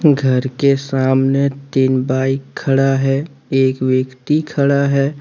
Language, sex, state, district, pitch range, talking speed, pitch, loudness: Hindi, male, Jharkhand, Deoghar, 130-140 Hz, 125 wpm, 135 Hz, -16 LUFS